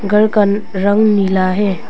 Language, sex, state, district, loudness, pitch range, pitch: Hindi, female, Arunachal Pradesh, Papum Pare, -14 LUFS, 195-210 Hz, 205 Hz